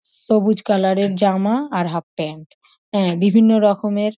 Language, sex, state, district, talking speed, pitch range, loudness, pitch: Bengali, female, West Bengal, North 24 Parganas, 145 wpm, 185-215 Hz, -18 LUFS, 200 Hz